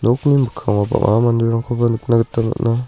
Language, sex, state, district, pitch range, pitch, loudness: Garo, male, Meghalaya, North Garo Hills, 115-120 Hz, 115 Hz, -17 LUFS